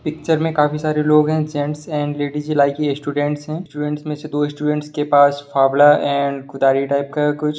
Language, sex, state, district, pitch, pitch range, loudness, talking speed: Hindi, male, Bihar, Sitamarhi, 150 Hz, 145-150 Hz, -18 LUFS, 205 wpm